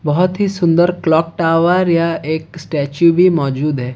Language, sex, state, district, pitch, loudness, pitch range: Hindi, male, Odisha, Khordha, 165 Hz, -15 LUFS, 155-175 Hz